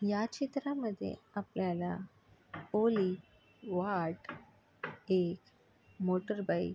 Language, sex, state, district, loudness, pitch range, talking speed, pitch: Marathi, female, Maharashtra, Sindhudurg, -36 LUFS, 180-210 Hz, 80 wpm, 190 Hz